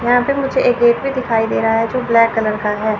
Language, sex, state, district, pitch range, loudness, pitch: Hindi, female, Chandigarh, Chandigarh, 225-255 Hz, -15 LUFS, 235 Hz